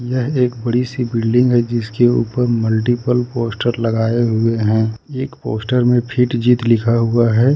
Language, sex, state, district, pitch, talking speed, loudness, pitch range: Hindi, male, Jharkhand, Ranchi, 120 Hz, 160 wpm, -16 LUFS, 115-125 Hz